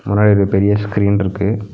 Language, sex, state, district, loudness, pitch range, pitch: Tamil, male, Tamil Nadu, Nilgiris, -15 LUFS, 100-105 Hz, 100 Hz